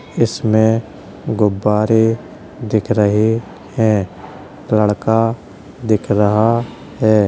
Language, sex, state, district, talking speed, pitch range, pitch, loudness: Hindi, male, Uttar Pradesh, Hamirpur, 75 wpm, 105-115 Hz, 110 Hz, -16 LUFS